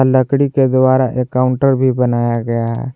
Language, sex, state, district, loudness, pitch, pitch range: Hindi, male, Jharkhand, Garhwa, -14 LUFS, 130 Hz, 120-130 Hz